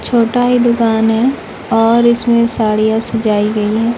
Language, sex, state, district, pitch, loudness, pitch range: Hindi, female, Bihar, West Champaran, 230 Hz, -13 LUFS, 220-235 Hz